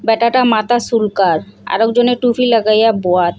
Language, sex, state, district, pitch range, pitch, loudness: Bengali, female, Assam, Hailakandi, 210-240 Hz, 225 Hz, -14 LUFS